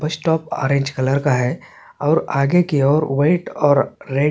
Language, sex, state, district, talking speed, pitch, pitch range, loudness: Hindi, male, Chhattisgarh, Korba, 180 wpm, 145 Hz, 135-155 Hz, -18 LUFS